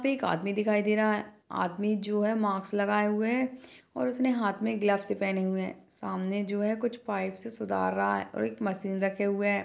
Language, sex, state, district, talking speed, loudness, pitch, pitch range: Hindi, female, Chhattisgarh, Bastar, 230 wpm, -30 LUFS, 205 Hz, 195-215 Hz